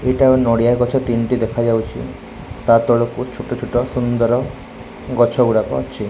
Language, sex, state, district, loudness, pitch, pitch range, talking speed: Odia, male, Odisha, Khordha, -17 LUFS, 120 Hz, 115-125 Hz, 130 wpm